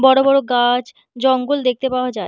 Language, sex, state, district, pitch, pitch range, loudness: Bengali, female, West Bengal, Purulia, 255 Hz, 245-265 Hz, -17 LUFS